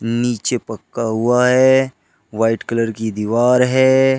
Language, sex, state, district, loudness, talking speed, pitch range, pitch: Hindi, male, Uttar Pradesh, Shamli, -16 LUFS, 130 wpm, 115-130 Hz, 120 Hz